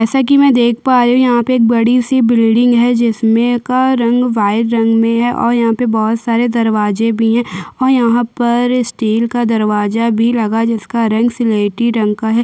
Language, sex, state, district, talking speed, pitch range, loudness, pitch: Hindi, female, Chhattisgarh, Sukma, 205 wpm, 225-240 Hz, -13 LUFS, 235 Hz